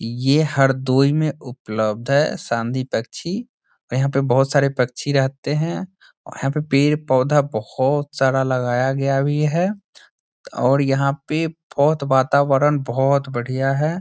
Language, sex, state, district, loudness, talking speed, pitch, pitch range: Hindi, male, Bihar, Saran, -19 LUFS, 140 wpm, 140 Hz, 130-150 Hz